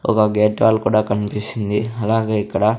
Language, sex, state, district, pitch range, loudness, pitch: Telugu, male, Andhra Pradesh, Sri Satya Sai, 105-110 Hz, -18 LUFS, 110 Hz